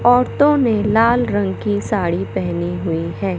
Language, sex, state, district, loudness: Hindi, male, Madhya Pradesh, Katni, -17 LUFS